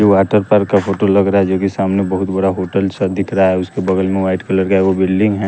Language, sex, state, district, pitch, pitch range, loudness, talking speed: Hindi, male, Bihar, West Champaran, 95 Hz, 95-100 Hz, -15 LUFS, 285 wpm